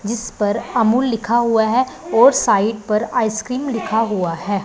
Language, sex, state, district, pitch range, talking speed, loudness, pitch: Hindi, female, Punjab, Pathankot, 210-235 Hz, 170 wpm, -17 LUFS, 225 Hz